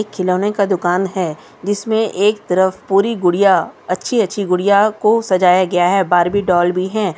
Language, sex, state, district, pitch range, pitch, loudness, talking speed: Hindi, female, Jharkhand, Sahebganj, 180-210 Hz, 190 Hz, -15 LUFS, 160 wpm